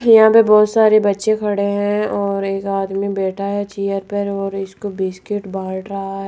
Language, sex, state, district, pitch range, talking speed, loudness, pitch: Hindi, female, Rajasthan, Jaipur, 195-210 Hz, 190 wpm, -17 LUFS, 200 Hz